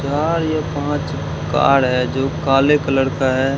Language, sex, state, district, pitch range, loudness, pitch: Hindi, male, Rajasthan, Bikaner, 135-145 Hz, -17 LUFS, 140 Hz